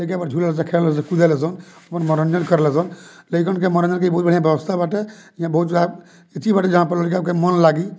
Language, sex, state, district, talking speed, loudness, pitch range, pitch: Bhojpuri, male, Bihar, Muzaffarpur, 220 wpm, -18 LUFS, 165-180 Hz, 175 Hz